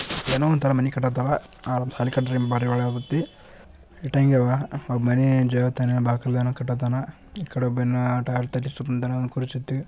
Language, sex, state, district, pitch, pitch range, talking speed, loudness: Kannada, male, Karnataka, Bijapur, 125 Hz, 125-135 Hz, 130 wpm, -24 LUFS